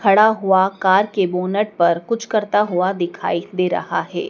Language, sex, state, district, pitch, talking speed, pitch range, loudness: Hindi, male, Madhya Pradesh, Dhar, 195 Hz, 180 wpm, 180-210 Hz, -18 LUFS